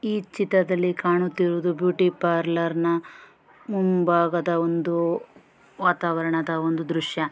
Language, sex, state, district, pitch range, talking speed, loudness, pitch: Kannada, female, Karnataka, Shimoga, 170-180 Hz, 100 wpm, -23 LUFS, 175 Hz